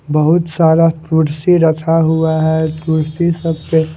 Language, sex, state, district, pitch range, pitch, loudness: Hindi, male, Punjab, Fazilka, 155-165 Hz, 160 Hz, -14 LUFS